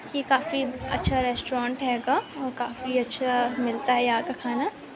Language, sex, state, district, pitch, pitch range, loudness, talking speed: Hindi, female, Goa, North and South Goa, 250 Hz, 245-265 Hz, -26 LUFS, 155 wpm